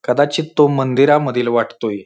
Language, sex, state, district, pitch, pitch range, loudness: Marathi, male, Maharashtra, Pune, 135 Hz, 120-145 Hz, -15 LUFS